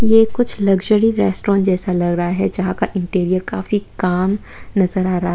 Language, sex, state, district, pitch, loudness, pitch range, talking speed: Hindi, female, Tripura, West Tripura, 195 Hz, -17 LUFS, 185-210 Hz, 190 wpm